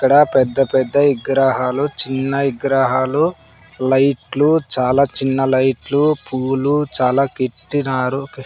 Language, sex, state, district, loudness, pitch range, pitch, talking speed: Telugu, male, Andhra Pradesh, Sri Satya Sai, -16 LUFS, 130-140 Hz, 135 Hz, 90 wpm